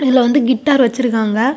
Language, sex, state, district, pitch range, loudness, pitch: Tamil, female, Tamil Nadu, Kanyakumari, 235-270 Hz, -14 LUFS, 255 Hz